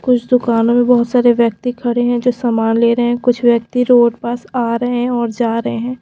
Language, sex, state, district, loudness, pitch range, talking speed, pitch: Hindi, female, Himachal Pradesh, Shimla, -14 LUFS, 235-245 Hz, 240 wpm, 240 Hz